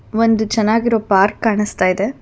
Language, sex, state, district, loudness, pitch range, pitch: Kannada, female, Karnataka, Bangalore, -16 LUFS, 205-225 Hz, 215 Hz